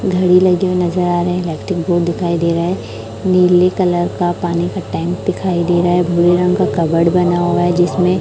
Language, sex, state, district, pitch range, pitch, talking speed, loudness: Hindi, female, Chhattisgarh, Raipur, 175-180 Hz, 175 Hz, 235 wpm, -15 LUFS